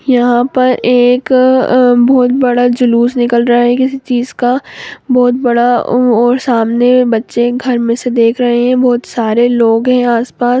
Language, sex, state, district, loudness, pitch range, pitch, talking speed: Hindi, female, Bihar, Muzaffarpur, -10 LUFS, 240-250 Hz, 245 Hz, 165 wpm